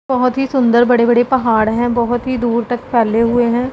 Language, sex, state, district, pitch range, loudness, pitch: Hindi, female, Punjab, Pathankot, 235-250 Hz, -14 LUFS, 240 Hz